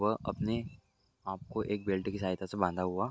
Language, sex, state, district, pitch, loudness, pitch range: Hindi, male, Uttar Pradesh, Jalaun, 100 Hz, -35 LUFS, 95-110 Hz